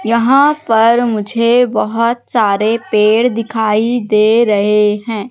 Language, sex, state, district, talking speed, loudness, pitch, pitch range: Hindi, female, Madhya Pradesh, Katni, 115 wpm, -12 LUFS, 225 Hz, 215-235 Hz